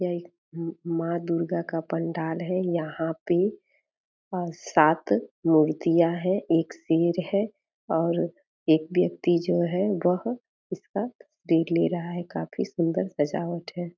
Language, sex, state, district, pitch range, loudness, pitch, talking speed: Hindi, female, Bihar, Purnia, 165-180 Hz, -26 LUFS, 170 Hz, 130 wpm